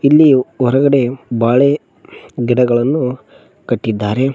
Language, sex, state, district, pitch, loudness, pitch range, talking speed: Kannada, male, Karnataka, Koppal, 125 Hz, -14 LUFS, 120-135 Hz, 70 wpm